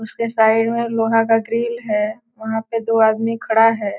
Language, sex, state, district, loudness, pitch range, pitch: Hindi, female, Bihar, Gopalganj, -18 LUFS, 220-230 Hz, 225 Hz